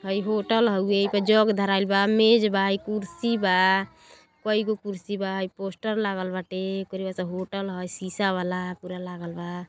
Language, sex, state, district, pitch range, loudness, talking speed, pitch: Bhojpuri, female, Uttar Pradesh, Gorakhpur, 185-205 Hz, -25 LUFS, 185 wpm, 195 Hz